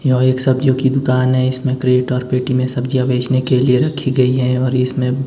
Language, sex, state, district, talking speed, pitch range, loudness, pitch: Hindi, male, Himachal Pradesh, Shimla, 225 wpm, 125-130 Hz, -16 LUFS, 130 Hz